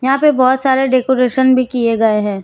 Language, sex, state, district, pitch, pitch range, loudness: Hindi, female, Jharkhand, Deoghar, 255 Hz, 235-265 Hz, -13 LUFS